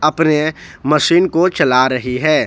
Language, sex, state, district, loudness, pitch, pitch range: Hindi, male, Jharkhand, Ranchi, -14 LUFS, 155 Hz, 135-165 Hz